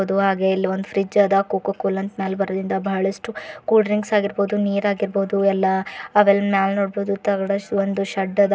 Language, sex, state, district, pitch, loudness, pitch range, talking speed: Kannada, female, Karnataka, Bidar, 195 Hz, -20 LUFS, 195-200 Hz, 170 wpm